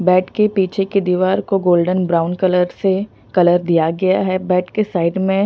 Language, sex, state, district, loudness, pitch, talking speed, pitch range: Hindi, female, Punjab, Pathankot, -16 LUFS, 185 Hz, 195 wpm, 180-190 Hz